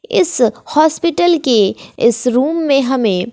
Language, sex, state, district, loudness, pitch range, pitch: Hindi, female, Bihar, West Champaran, -14 LUFS, 235-330 Hz, 265 Hz